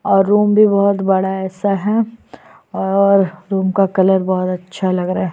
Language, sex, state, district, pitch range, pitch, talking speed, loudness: Hindi, female, Chhattisgarh, Sukma, 190-200 Hz, 195 Hz, 190 wpm, -15 LUFS